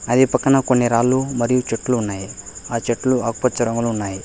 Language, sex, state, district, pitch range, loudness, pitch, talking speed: Telugu, male, Telangana, Hyderabad, 115-130 Hz, -19 LUFS, 120 Hz, 170 wpm